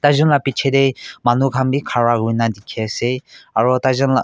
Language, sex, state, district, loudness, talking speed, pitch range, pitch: Nagamese, male, Nagaland, Kohima, -17 LUFS, 200 wpm, 120-135 Hz, 130 Hz